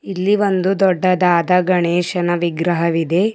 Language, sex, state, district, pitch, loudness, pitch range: Kannada, female, Karnataka, Bidar, 180 Hz, -16 LUFS, 175-190 Hz